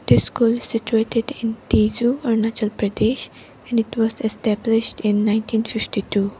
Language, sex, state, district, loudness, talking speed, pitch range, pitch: English, female, Arunachal Pradesh, Lower Dibang Valley, -21 LUFS, 150 wpm, 215-230 Hz, 225 Hz